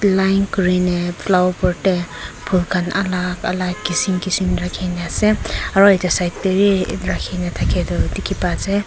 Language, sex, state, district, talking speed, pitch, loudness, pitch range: Nagamese, female, Nagaland, Kohima, 170 wpm, 180 Hz, -18 LUFS, 175-195 Hz